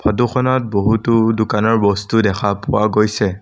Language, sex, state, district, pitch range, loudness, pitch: Assamese, male, Assam, Sonitpur, 100-115 Hz, -16 LUFS, 110 Hz